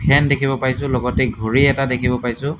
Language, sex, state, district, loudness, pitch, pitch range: Assamese, male, Assam, Hailakandi, -18 LUFS, 130 Hz, 125-140 Hz